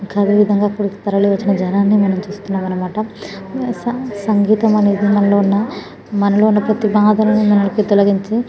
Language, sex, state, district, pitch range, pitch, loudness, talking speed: Telugu, female, Telangana, Nalgonda, 200-215 Hz, 205 Hz, -15 LUFS, 120 wpm